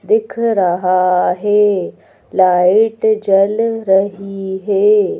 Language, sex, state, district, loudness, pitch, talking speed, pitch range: Hindi, female, Madhya Pradesh, Bhopal, -14 LUFS, 200 Hz, 80 wpm, 190-225 Hz